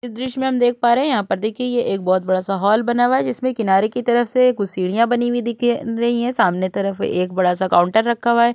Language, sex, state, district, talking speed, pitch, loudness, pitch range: Hindi, female, Uttar Pradesh, Budaun, 280 wpm, 235 Hz, -18 LUFS, 195-245 Hz